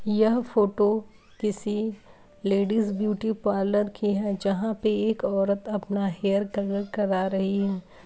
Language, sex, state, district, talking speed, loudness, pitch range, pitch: Hindi, female, Uttar Pradesh, Ghazipur, 135 wpm, -26 LUFS, 195-215 Hz, 205 Hz